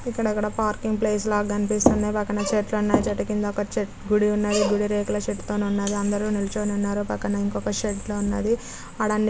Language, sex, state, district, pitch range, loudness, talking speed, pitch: Telugu, female, Telangana, Karimnagar, 205-215 Hz, -24 LUFS, 170 wpm, 210 Hz